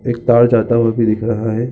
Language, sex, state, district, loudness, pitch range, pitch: Hindi, male, Chhattisgarh, Bilaspur, -14 LUFS, 115-120 Hz, 115 Hz